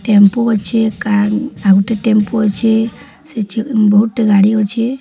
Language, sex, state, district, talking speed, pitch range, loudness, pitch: Odia, female, Odisha, Sambalpur, 155 wpm, 205-225 Hz, -13 LUFS, 215 Hz